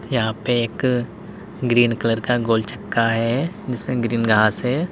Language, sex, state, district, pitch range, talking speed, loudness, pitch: Hindi, male, Uttar Pradesh, Lalitpur, 115-130 Hz, 160 wpm, -20 LUFS, 120 Hz